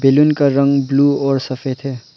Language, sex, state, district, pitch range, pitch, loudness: Hindi, male, Arunachal Pradesh, Lower Dibang Valley, 135-140 Hz, 140 Hz, -15 LUFS